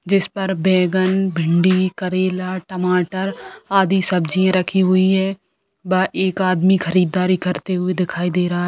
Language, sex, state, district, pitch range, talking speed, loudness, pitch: Bhojpuri, female, Bihar, Saran, 180-190 Hz, 145 wpm, -18 LUFS, 185 Hz